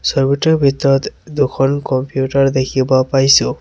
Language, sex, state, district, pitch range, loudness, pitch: Assamese, male, Assam, Sonitpur, 130-140 Hz, -15 LUFS, 135 Hz